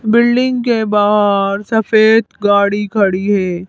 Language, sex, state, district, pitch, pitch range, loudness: Hindi, female, Madhya Pradesh, Bhopal, 210 Hz, 200-225 Hz, -13 LUFS